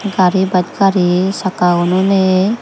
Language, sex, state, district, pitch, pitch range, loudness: Chakma, female, Tripura, Dhalai, 185 Hz, 180-195 Hz, -13 LUFS